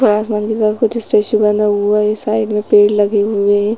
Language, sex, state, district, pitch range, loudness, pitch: Hindi, female, Chhattisgarh, Rajnandgaon, 210-215 Hz, -14 LUFS, 210 Hz